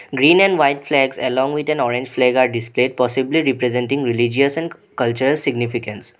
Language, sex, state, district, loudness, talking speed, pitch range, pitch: English, male, Assam, Sonitpur, -17 LUFS, 165 wpm, 120-140 Hz, 130 Hz